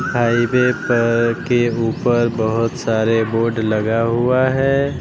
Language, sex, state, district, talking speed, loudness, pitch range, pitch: Hindi, male, Bihar, West Champaran, 120 wpm, -17 LUFS, 115-120 Hz, 115 Hz